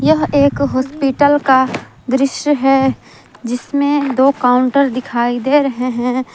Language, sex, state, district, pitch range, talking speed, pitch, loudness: Hindi, female, Jharkhand, Ranchi, 255-285 Hz, 125 wpm, 270 Hz, -14 LUFS